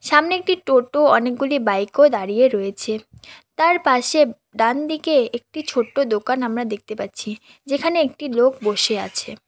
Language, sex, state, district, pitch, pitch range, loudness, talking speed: Bengali, female, West Bengal, Cooch Behar, 255 Hz, 220-295 Hz, -19 LUFS, 145 wpm